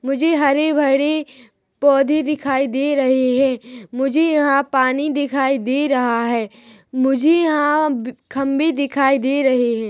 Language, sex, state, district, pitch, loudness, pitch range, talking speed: Hindi, female, Chhattisgarh, Rajnandgaon, 275 Hz, -17 LUFS, 255-290 Hz, 125 wpm